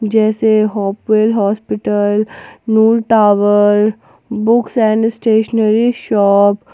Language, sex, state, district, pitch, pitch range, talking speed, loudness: Hindi, female, Jharkhand, Ranchi, 215 Hz, 205-225 Hz, 90 wpm, -13 LUFS